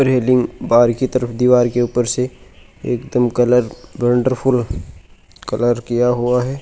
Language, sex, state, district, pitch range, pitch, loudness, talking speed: Hindi, male, Rajasthan, Churu, 120-125 Hz, 125 Hz, -17 LUFS, 145 wpm